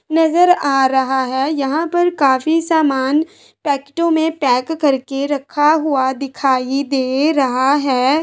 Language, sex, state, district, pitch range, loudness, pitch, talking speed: Hindi, female, Chhattisgarh, Raigarh, 265-315 Hz, -16 LUFS, 280 Hz, 130 wpm